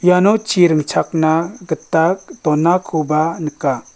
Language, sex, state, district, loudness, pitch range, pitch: Garo, male, Meghalaya, West Garo Hills, -16 LUFS, 155-180 Hz, 165 Hz